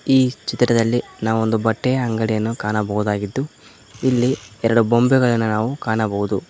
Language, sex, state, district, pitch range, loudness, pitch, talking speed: Kannada, male, Karnataka, Koppal, 110-125 Hz, -19 LUFS, 115 Hz, 110 wpm